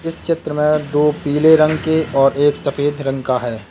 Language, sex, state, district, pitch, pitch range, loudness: Hindi, male, Uttar Pradesh, Lalitpur, 145 Hz, 135-155 Hz, -16 LUFS